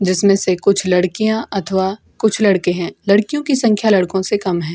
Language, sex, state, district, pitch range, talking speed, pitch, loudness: Hindi, female, Bihar, Gaya, 185-215 Hz, 190 wpm, 195 Hz, -16 LUFS